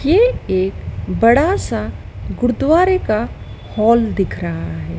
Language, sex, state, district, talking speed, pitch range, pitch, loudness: Hindi, female, Madhya Pradesh, Dhar, 120 wpm, 185-310 Hz, 230 Hz, -16 LUFS